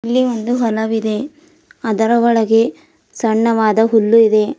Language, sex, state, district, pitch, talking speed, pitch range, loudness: Kannada, female, Karnataka, Bidar, 230 Hz, 105 wpm, 220-255 Hz, -15 LUFS